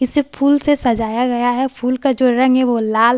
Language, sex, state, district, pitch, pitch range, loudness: Hindi, female, Bihar, Katihar, 255 Hz, 240-270 Hz, -16 LUFS